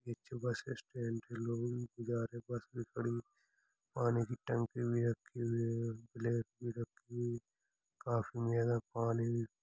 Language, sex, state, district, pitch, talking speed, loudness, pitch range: Hindi, male, Uttar Pradesh, Hamirpur, 120 Hz, 150 wpm, -39 LUFS, 115-120 Hz